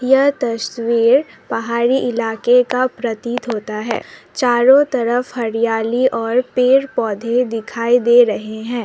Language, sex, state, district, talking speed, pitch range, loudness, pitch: Hindi, female, Assam, Sonitpur, 120 wpm, 230-250 Hz, -16 LUFS, 240 Hz